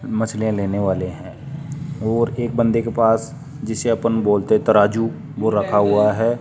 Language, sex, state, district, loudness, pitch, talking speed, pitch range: Hindi, male, Rajasthan, Jaipur, -19 LUFS, 115 Hz, 160 wpm, 105-120 Hz